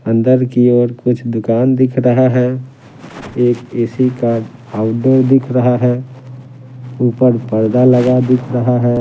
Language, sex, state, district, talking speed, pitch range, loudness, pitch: Hindi, male, Bihar, Patna, 140 wpm, 120-130 Hz, -13 LUFS, 125 Hz